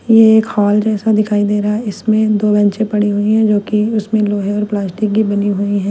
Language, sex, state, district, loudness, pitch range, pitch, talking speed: Hindi, female, Punjab, Kapurthala, -14 LUFS, 205-215 Hz, 210 Hz, 245 wpm